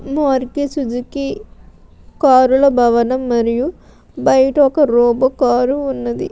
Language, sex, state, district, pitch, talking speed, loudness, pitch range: Telugu, female, Andhra Pradesh, Krishna, 260 Hz, 105 wpm, -15 LUFS, 245-280 Hz